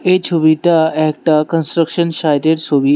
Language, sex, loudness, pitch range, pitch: Bengali, male, -14 LUFS, 155-165 Hz, 160 Hz